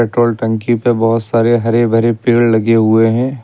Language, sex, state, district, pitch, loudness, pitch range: Hindi, male, Uttar Pradesh, Lucknow, 115 Hz, -13 LUFS, 115-120 Hz